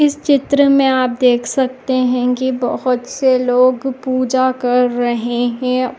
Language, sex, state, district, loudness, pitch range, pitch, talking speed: Hindi, female, Goa, North and South Goa, -15 LUFS, 250-260 Hz, 255 Hz, 150 wpm